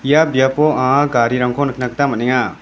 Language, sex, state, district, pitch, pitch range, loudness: Garo, male, Meghalaya, West Garo Hills, 130 Hz, 125-145 Hz, -15 LUFS